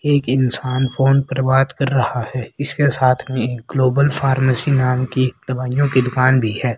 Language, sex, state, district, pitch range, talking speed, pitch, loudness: Hindi, female, Haryana, Rohtak, 125-135 Hz, 185 wpm, 130 Hz, -17 LUFS